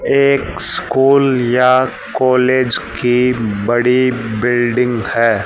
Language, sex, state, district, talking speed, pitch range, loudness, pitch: Hindi, male, Haryana, Charkhi Dadri, 90 wpm, 115-130 Hz, -14 LUFS, 125 Hz